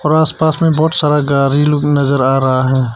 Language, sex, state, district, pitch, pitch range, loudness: Hindi, male, Arunachal Pradesh, Papum Pare, 145 Hz, 135-155 Hz, -12 LUFS